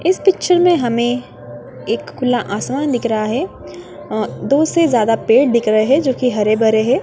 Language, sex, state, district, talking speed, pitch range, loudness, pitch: Hindi, female, Bihar, Madhepura, 180 wpm, 225-290 Hz, -16 LUFS, 250 Hz